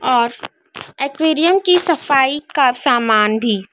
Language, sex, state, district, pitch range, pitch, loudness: Hindi, female, Madhya Pradesh, Dhar, 235-315 Hz, 275 Hz, -15 LUFS